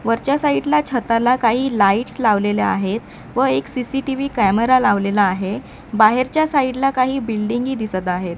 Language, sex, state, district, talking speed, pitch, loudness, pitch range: Marathi, male, Maharashtra, Mumbai Suburban, 155 wpm, 230 Hz, -18 LUFS, 200-255 Hz